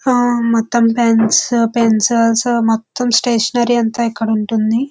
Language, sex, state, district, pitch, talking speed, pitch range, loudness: Telugu, female, Andhra Pradesh, Visakhapatnam, 230 Hz, 110 wpm, 225-240 Hz, -14 LUFS